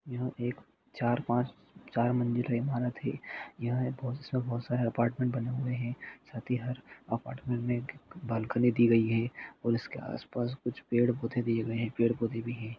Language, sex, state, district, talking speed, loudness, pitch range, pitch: Hindi, male, Jharkhand, Jamtara, 185 wpm, -32 LUFS, 120-125 Hz, 120 Hz